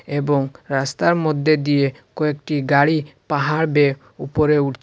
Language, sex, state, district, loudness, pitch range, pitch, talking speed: Bengali, male, Assam, Hailakandi, -19 LUFS, 140-150 Hz, 145 Hz, 125 wpm